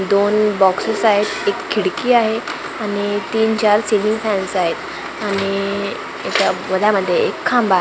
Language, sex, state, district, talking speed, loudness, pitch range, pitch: Marathi, female, Maharashtra, Gondia, 140 wpm, -17 LUFS, 195-220 Hz, 210 Hz